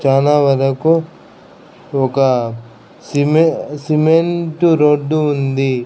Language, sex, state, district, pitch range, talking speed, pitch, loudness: Telugu, male, Andhra Pradesh, Krishna, 135-160 Hz, 70 wpm, 145 Hz, -15 LUFS